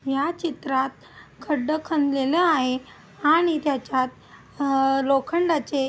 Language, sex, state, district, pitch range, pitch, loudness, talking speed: Marathi, female, Maharashtra, Aurangabad, 265-315 Hz, 280 Hz, -23 LUFS, 100 wpm